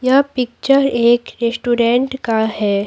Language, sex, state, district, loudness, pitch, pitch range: Hindi, female, Bihar, Patna, -16 LUFS, 240 Hz, 230-265 Hz